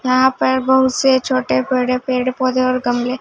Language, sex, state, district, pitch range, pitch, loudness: Hindi, female, Punjab, Fazilka, 250-260 Hz, 255 Hz, -16 LUFS